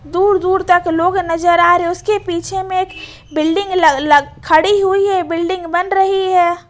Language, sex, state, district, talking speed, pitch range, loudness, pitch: Hindi, female, Jharkhand, Ranchi, 195 wpm, 340-380 Hz, -14 LUFS, 355 Hz